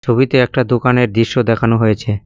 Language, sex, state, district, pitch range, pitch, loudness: Bengali, male, West Bengal, Cooch Behar, 115-125 Hz, 120 Hz, -14 LUFS